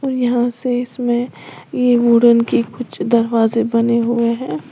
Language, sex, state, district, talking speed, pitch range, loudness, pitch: Hindi, female, Uttar Pradesh, Lalitpur, 140 wpm, 230-245 Hz, -16 LUFS, 235 Hz